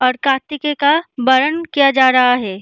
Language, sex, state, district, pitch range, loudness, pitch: Hindi, female, Bihar, Jahanabad, 255-295 Hz, -14 LUFS, 270 Hz